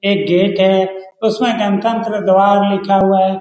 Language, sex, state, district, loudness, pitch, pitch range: Hindi, male, Bihar, Lakhisarai, -14 LUFS, 195 Hz, 190-210 Hz